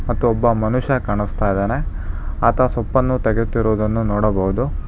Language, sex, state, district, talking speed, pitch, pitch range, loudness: Kannada, male, Karnataka, Bangalore, 110 wpm, 110 Hz, 100-120 Hz, -19 LUFS